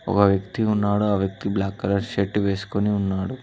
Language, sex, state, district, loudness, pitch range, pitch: Telugu, male, Telangana, Mahabubabad, -23 LUFS, 95-105 Hz, 100 Hz